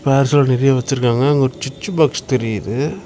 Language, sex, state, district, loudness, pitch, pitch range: Tamil, male, Tamil Nadu, Namakkal, -16 LUFS, 135 Hz, 130-145 Hz